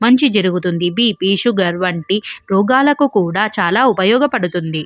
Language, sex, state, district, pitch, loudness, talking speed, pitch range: Telugu, female, Andhra Pradesh, Visakhapatnam, 200 Hz, -15 LUFS, 110 wpm, 180-240 Hz